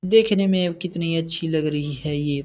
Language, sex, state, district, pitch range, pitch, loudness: Hindi, male, Bihar, Jamui, 150-185 Hz, 165 Hz, -22 LUFS